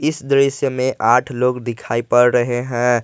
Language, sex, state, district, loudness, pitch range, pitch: Hindi, male, Jharkhand, Garhwa, -17 LUFS, 120-135 Hz, 125 Hz